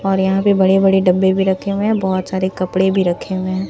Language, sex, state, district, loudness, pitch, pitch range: Hindi, female, Bihar, Katihar, -16 LUFS, 190 Hz, 185-195 Hz